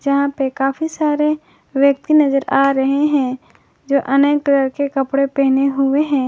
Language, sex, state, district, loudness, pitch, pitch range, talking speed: Hindi, male, Jharkhand, Garhwa, -16 LUFS, 275 Hz, 270-285 Hz, 160 wpm